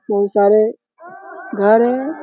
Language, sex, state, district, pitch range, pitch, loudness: Hindi, male, Bihar, Jamui, 210-330 Hz, 235 Hz, -15 LUFS